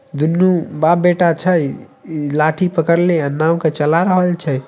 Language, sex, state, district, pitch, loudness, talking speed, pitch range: Maithili, male, Bihar, Samastipur, 165 Hz, -15 LUFS, 155 wpm, 155-175 Hz